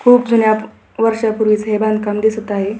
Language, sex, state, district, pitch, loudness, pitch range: Marathi, female, Maharashtra, Pune, 215 Hz, -15 LUFS, 215-225 Hz